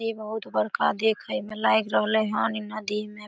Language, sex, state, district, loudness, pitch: Maithili, female, Bihar, Samastipur, -26 LUFS, 210 Hz